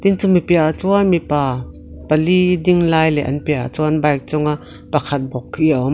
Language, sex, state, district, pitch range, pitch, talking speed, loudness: Mizo, female, Mizoram, Aizawl, 140-175 Hz, 155 Hz, 190 wpm, -17 LUFS